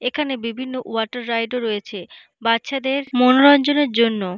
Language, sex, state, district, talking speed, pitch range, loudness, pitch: Bengali, female, West Bengal, Paschim Medinipur, 125 wpm, 230-265 Hz, -19 LUFS, 245 Hz